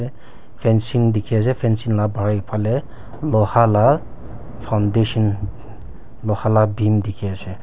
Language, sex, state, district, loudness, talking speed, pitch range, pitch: Nagamese, male, Nagaland, Kohima, -19 LUFS, 120 wpm, 105-115 Hz, 110 Hz